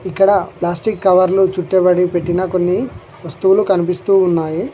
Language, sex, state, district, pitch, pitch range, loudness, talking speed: Telugu, male, Telangana, Mahabubabad, 180 Hz, 175-190 Hz, -15 LUFS, 115 wpm